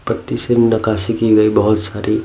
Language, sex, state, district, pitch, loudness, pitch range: Hindi, male, Bihar, Patna, 110 Hz, -15 LUFS, 105-115 Hz